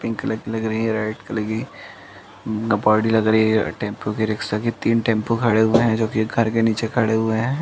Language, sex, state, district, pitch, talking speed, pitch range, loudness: Hindi, male, Uttar Pradesh, Muzaffarnagar, 110 Hz, 235 wpm, 110-115 Hz, -20 LUFS